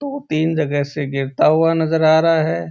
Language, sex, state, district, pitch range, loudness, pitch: Marwari, male, Rajasthan, Churu, 145-160 Hz, -17 LUFS, 155 Hz